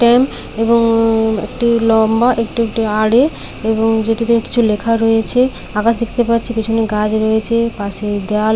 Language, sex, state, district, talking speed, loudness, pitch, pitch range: Bengali, female, West Bengal, Paschim Medinipur, 140 wpm, -15 LUFS, 225 Hz, 220-235 Hz